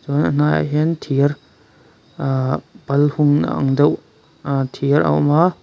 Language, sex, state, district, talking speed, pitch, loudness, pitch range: Mizo, male, Mizoram, Aizawl, 150 wpm, 145 Hz, -18 LUFS, 140-150 Hz